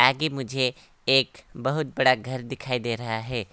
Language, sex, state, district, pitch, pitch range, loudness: Hindi, male, West Bengal, Alipurduar, 130 Hz, 120-135 Hz, -25 LUFS